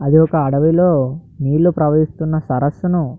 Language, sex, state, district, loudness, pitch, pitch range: Telugu, male, Andhra Pradesh, Anantapur, -16 LUFS, 155 Hz, 140-165 Hz